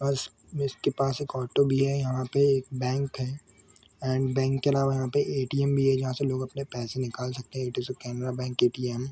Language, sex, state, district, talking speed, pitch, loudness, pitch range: Hindi, male, Jharkhand, Sahebganj, 235 wpm, 130 Hz, -28 LUFS, 125-140 Hz